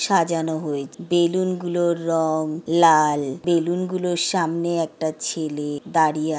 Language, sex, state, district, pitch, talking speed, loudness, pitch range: Bengali, female, West Bengal, Jhargram, 165 Hz, 120 wpm, -21 LUFS, 155-175 Hz